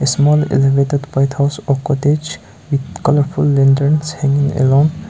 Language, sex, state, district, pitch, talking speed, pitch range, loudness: English, male, Nagaland, Kohima, 140 Hz, 130 wpm, 135-145 Hz, -15 LUFS